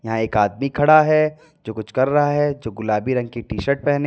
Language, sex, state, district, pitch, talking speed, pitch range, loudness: Hindi, male, Uttar Pradesh, Lalitpur, 135 Hz, 235 wpm, 110-145 Hz, -19 LUFS